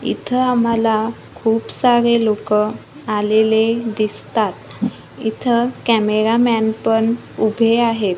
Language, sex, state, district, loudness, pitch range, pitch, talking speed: Marathi, female, Maharashtra, Gondia, -17 LUFS, 220-235 Hz, 225 Hz, 95 wpm